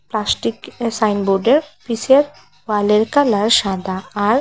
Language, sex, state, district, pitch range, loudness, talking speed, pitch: Bengali, female, Assam, Hailakandi, 195-250 Hz, -17 LUFS, 110 wpm, 215 Hz